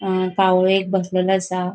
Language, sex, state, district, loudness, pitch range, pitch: Konkani, female, Goa, North and South Goa, -18 LUFS, 185-190 Hz, 185 Hz